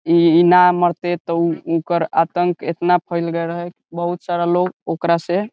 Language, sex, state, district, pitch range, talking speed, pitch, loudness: Bhojpuri, male, Bihar, Saran, 170-175 Hz, 185 wpm, 175 Hz, -18 LUFS